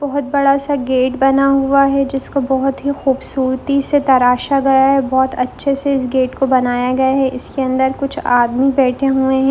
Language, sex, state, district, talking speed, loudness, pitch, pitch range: Hindi, female, Chhattisgarh, Korba, 245 wpm, -15 LUFS, 270 Hz, 260-275 Hz